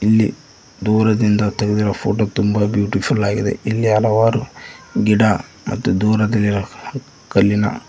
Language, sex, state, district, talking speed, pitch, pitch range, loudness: Kannada, male, Karnataka, Koppal, 100 wpm, 105 Hz, 105-110 Hz, -17 LUFS